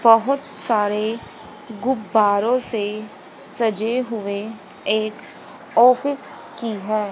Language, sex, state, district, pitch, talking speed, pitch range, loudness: Hindi, female, Haryana, Jhajjar, 220 Hz, 85 wpm, 210-245 Hz, -21 LUFS